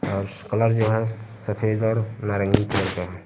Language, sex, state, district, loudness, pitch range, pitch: Hindi, male, Uttar Pradesh, Varanasi, -23 LUFS, 100-110 Hz, 110 Hz